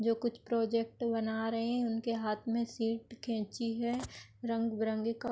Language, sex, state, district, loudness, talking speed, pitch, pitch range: Hindi, female, Uttar Pradesh, Etah, -35 LUFS, 160 wpm, 230 Hz, 225-235 Hz